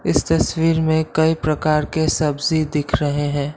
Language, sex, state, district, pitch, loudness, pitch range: Hindi, male, Assam, Kamrup Metropolitan, 155 Hz, -19 LUFS, 145-160 Hz